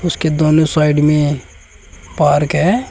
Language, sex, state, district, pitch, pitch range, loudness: Hindi, male, Uttar Pradesh, Shamli, 150 Hz, 100-155 Hz, -14 LUFS